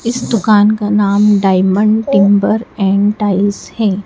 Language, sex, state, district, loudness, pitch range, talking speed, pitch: Hindi, female, Madhya Pradesh, Dhar, -12 LUFS, 200-215 Hz, 135 wpm, 205 Hz